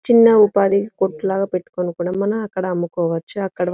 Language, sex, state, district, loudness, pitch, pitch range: Telugu, female, Telangana, Karimnagar, -18 LUFS, 190 Hz, 180-205 Hz